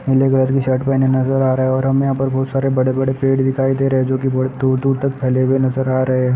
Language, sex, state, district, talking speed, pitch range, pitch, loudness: Hindi, male, Uttar Pradesh, Ghazipur, 290 wpm, 130-135 Hz, 130 Hz, -16 LUFS